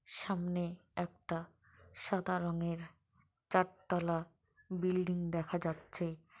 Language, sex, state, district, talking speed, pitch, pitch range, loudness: Bengali, female, West Bengal, Paschim Medinipur, 85 wpm, 175 Hz, 165-180 Hz, -38 LUFS